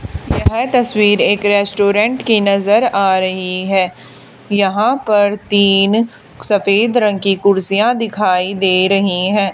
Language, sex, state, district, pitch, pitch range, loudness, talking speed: Hindi, female, Haryana, Charkhi Dadri, 200 Hz, 195-215 Hz, -14 LUFS, 125 wpm